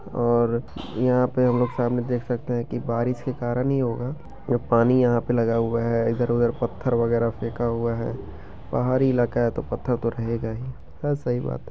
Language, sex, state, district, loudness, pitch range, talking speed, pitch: Maithili, male, Bihar, Begusarai, -24 LUFS, 115-125 Hz, 220 wpm, 120 Hz